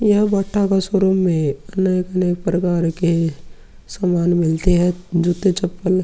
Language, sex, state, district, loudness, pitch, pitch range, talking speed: Hindi, male, Uttar Pradesh, Muzaffarnagar, -18 LUFS, 180 Hz, 170-190 Hz, 130 wpm